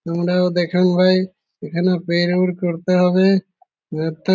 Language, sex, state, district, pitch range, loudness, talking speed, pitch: Bengali, male, West Bengal, Malda, 175-185 Hz, -18 LUFS, 95 wpm, 180 Hz